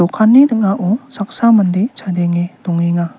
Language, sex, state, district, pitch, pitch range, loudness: Garo, male, Meghalaya, South Garo Hills, 200 Hz, 175-225 Hz, -14 LUFS